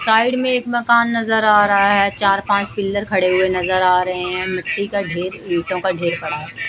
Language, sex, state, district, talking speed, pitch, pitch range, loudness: Hindi, female, Odisha, Malkangiri, 235 wpm, 195 Hz, 185-210 Hz, -17 LUFS